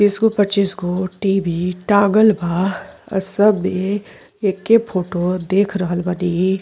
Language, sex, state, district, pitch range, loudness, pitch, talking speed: Bhojpuri, female, Uttar Pradesh, Deoria, 180-205 Hz, -18 LUFS, 190 Hz, 125 wpm